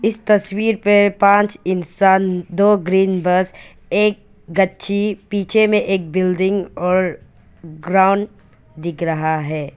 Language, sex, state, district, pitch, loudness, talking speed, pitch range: Hindi, female, Arunachal Pradesh, Papum Pare, 190 Hz, -17 LUFS, 115 wpm, 175-205 Hz